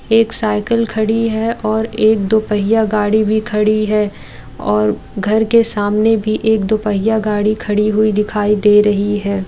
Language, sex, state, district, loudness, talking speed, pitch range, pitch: Hindi, female, Bihar, Gaya, -15 LUFS, 160 wpm, 210-220 Hz, 215 Hz